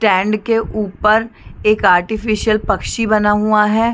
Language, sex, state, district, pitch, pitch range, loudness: Hindi, female, Chhattisgarh, Bilaspur, 215 Hz, 210-220 Hz, -15 LUFS